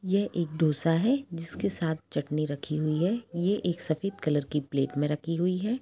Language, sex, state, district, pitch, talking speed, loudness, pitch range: Hindi, female, Jharkhand, Jamtara, 165 Hz, 205 wpm, -29 LUFS, 150-190 Hz